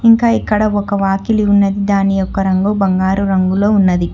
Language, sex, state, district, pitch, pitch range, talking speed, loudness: Telugu, female, Telangana, Hyderabad, 200 Hz, 195-205 Hz, 160 wpm, -14 LUFS